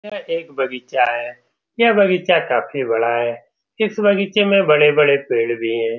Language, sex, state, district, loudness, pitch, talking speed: Hindi, male, Bihar, Saran, -17 LUFS, 150 Hz, 170 wpm